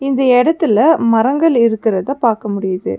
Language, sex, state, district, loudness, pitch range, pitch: Tamil, female, Tamil Nadu, Nilgiris, -14 LUFS, 215-275 Hz, 230 Hz